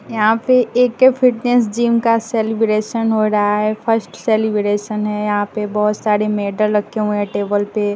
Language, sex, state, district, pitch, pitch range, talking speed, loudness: Hindi, female, Bihar, West Champaran, 215 Hz, 210-230 Hz, 175 wpm, -16 LUFS